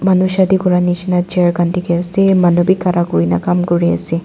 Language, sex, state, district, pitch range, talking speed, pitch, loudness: Nagamese, female, Nagaland, Dimapur, 175-185 Hz, 240 wpm, 180 Hz, -14 LUFS